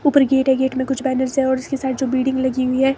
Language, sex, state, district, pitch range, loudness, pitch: Hindi, female, Himachal Pradesh, Shimla, 260-270 Hz, -19 LUFS, 265 Hz